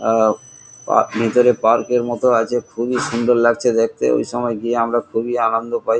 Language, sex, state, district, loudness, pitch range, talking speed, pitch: Bengali, male, West Bengal, Kolkata, -17 LUFS, 115-120 Hz, 180 wpm, 120 Hz